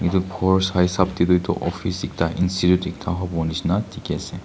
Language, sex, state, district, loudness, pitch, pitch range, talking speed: Nagamese, male, Nagaland, Kohima, -22 LUFS, 90 Hz, 90-95 Hz, 175 wpm